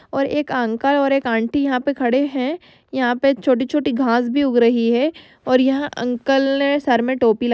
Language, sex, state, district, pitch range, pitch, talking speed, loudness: Hindi, female, Maharashtra, Dhule, 245-280 Hz, 265 Hz, 200 wpm, -18 LUFS